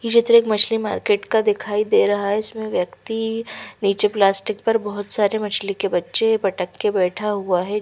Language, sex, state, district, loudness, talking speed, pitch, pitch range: Hindi, female, Bihar, Katihar, -19 LUFS, 190 wpm, 210 Hz, 200-220 Hz